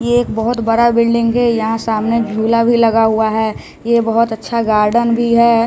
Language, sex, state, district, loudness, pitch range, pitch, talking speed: Hindi, male, Bihar, West Champaran, -14 LUFS, 225-235 Hz, 230 Hz, 200 wpm